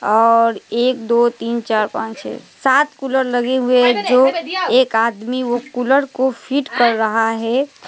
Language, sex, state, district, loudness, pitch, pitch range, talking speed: Hindi, female, West Bengal, Alipurduar, -16 LUFS, 245 Hz, 230-265 Hz, 170 wpm